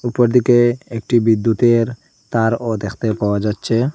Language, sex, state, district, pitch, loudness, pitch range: Bengali, male, Assam, Hailakandi, 115 Hz, -17 LUFS, 110-120 Hz